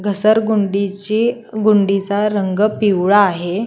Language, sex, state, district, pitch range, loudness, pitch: Marathi, female, Maharashtra, Solapur, 195-215 Hz, -16 LUFS, 205 Hz